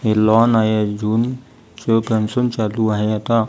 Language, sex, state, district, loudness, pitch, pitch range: Marathi, female, Maharashtra, Gondia, -17 LUFS, 110 Hz, 110-115 Hz